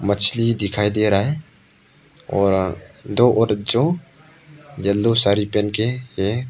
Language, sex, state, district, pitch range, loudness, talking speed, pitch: Hindi, male, Arunachal Pradesh, Papum Pare, 100-125 Hz, -19 LUFS, 130 wpm, 110 Hz